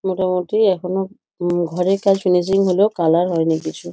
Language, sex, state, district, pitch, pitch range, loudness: Bengali, female, West Bengal, North 24 Parganas, 185 Hz, 175-195 Hz, -18 LUFS